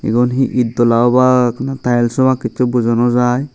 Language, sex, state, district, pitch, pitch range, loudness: Chakma, male, Tripura, Unakoti, 125 Hz, 120-130 Hz, -14 LUFS